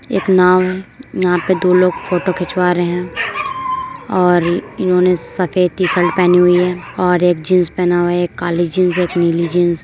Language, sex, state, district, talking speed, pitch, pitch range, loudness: Hindi, female, Uttar Pradesh, Muzaffarnagar, 205 wpm, 180 Hz, 175-185 Hz, -15 LUFS